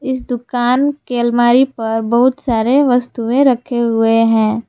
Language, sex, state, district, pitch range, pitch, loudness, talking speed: Hindi, female, Jharkhand, Palamu, 230-255 Hz, 245 Hz, -14 LUFS, 140 wpm